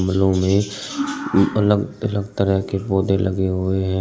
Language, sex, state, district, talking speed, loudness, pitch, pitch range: Hindi, male, Uttar Pradesh, Shamli, 150 wpm, -20 LUFS, 95 Hz, 95-105 Hz